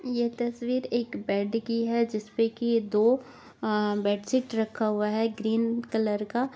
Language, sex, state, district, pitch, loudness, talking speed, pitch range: Hindi, female, Chhattisgarh, Bastar, 230 Hz, -28 LUFS, 185 wpm, 215-240 Hz